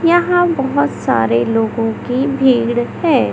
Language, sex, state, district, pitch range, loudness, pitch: Hindi, male, Madhya Pradesh, Katni, 230-310 Hz, -15 LUFS, 260 Hz